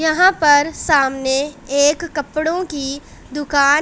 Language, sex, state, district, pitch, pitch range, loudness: Hindi, female, Punjab, Pathankot, 290 Hz, 280-315 Hz, -17 LUFS